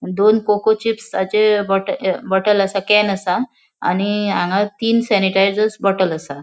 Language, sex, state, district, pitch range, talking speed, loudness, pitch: Konkani, female, Goa, North and South Goa, 190-215 Hz, 150 wpm, -17 LUFS, 200 Hz